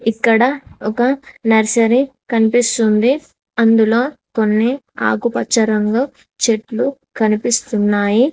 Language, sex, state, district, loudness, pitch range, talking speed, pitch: Telugu, female, Telangana, Mahabubabad, -16 LUFS, 220-255 Hz, 70 wpm, 230 Hz